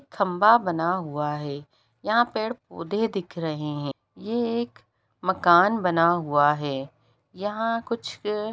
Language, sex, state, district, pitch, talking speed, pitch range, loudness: Hindi, female, Bihar, Jamui, 175 Hz, 120 wpm, 145-215 Hz, -24 LUFS